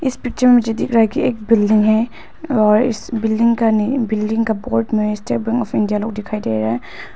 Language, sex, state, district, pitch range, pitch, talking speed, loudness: Hindi, female, Arunachal Pradesh, Papum Pare, 215-235 Hz, 225 Hz, 210 wpm, -17 LUFS